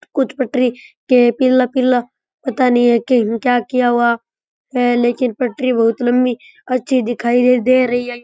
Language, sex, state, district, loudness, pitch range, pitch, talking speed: Rajasthani, male, Rajasthan, Churu, -15 LUFS, 240-255 Hz, 250 Hz, 155 wpm